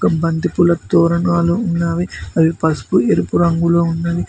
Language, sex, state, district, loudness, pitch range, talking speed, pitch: Telugu, male, Telangana, Mahabubabad, -16 LUFS, 165-170 Hz, 125 wpm, 170 Hz